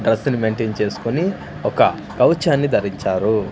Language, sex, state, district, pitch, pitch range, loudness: Telugu, male, Andhra Pradesh, Manyam, 115 Hz, 110-155 Hz, -19 LUFS